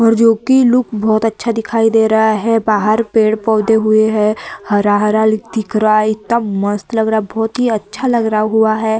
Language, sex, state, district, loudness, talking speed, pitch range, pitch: Hindi, female, Bihar, Vaishali, -14 LUFS, 205 wpm, 215-225 Hz, 220 Hz